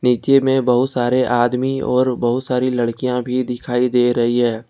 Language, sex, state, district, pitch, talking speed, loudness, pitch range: Hindi, male, Jharkhand, Ranchi, 125 Hz, 180 wpm, -17 LUFS, 120-130 Hz